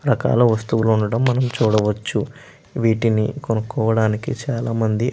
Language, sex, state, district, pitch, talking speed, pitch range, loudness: Telugu, male, Andhra Pradesh, Chittoor, 115 Hz, 115 wpm, 110-120 Hz, -19 LUFS